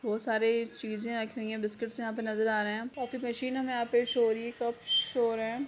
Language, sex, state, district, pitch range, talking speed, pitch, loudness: Hindi, female, Jharkhand, Sahebganj, 220-240 Hz, 275 wpm, 230 Hz, -31 LUFS